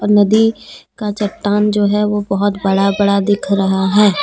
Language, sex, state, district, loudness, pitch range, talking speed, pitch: Hindi, female, Jharkhand, Deoghar, -14 LUFS, 200-210 Hz, 170 wpm, 205 Hz